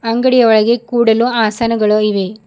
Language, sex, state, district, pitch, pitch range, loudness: Kannada, female, Karnataka, Bidar, 230 Hz, 215-235 Hz, -12 LUFS